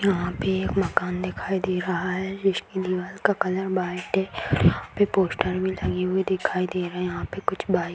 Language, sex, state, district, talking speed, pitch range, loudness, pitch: Hindi, female, Bihar, Jamui, 220 wpm, 180-190 Hz, -25 LUFS, 185 Hz